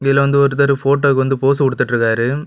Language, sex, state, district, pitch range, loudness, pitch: Tamil, male, Tamil Nadu, Kanyakumari, 130-140 Hz, -15 LUFS, 135 Hz